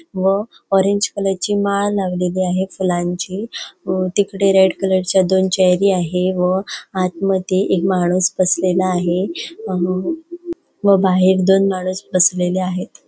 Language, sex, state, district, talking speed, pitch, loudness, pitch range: Marathi, female, Goa, North and South Goa, 140 wpm, 190 Hz, -17 LUFS, 185-195 Hz